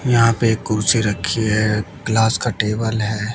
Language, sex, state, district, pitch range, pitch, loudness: Hindi, male, Haryana, Jhajjar, 105-115 Hz, 110 Hz, -18 LUFS